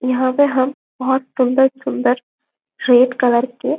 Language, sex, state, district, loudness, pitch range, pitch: Hindi, female, Chhattisgarh, Bastar, -17 LUFS, 250-265 Hz, 255 Hz